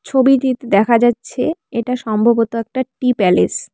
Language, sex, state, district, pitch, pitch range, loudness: Bengali, female, West Bengal, Cooch Behar, 240 Hz, 230-260 Hz, -16 LUFS